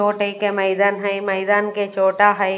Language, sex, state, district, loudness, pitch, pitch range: Hindi, female, Chhattisgarh, Raipur, -19 LUFS, 200 Hz, 195-205 Hz